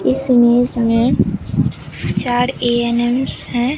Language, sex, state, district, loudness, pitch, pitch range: Hindi, female, Bihar, Katihar, -16 LUFS, 240 Hz, 235-245 Hz